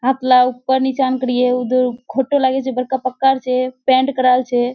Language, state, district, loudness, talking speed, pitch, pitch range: Surjapuri, Bihar, Kishanganj, -16 LUFS, 150 wpm, 255 Hz, 250-265 Hz